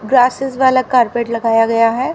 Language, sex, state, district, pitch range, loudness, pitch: Hindi, female, Haryana, Rohtak, 230-260 Hz, -14 LUFS, 245 Hz